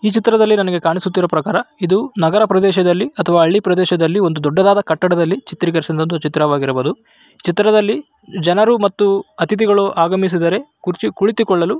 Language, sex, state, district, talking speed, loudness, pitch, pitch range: Kannada, male, Karnataka, Raichur, 130 wpm, -15 LUFS, 190 Hz, 170-210 Hz